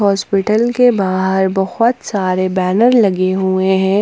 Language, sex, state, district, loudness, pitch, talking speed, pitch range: Hindi, female, Jharkhand, Ranchi, -14 LUFS, 195 Hz, 135 wpm, 190-215 Hz